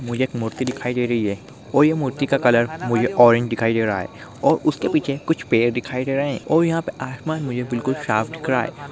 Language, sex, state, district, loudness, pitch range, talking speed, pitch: Hindi, male, Chhattisgarh, Kabirdham, -20 LUFS, 120-145 Hz, 250 wpm, 130 Hz